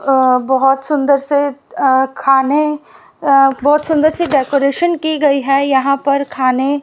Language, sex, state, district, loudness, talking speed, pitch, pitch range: Hindi, female, Haryana, Rohtak, -14 LUFS, 160 wpm, 275 Hz, 270-290 Hz